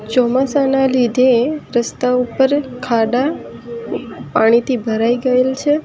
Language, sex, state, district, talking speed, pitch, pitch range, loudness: Gujarati, female, Gujarat, Valsad, 90 wpm, 250 Hz, 240-265 Hz, -16 LUFS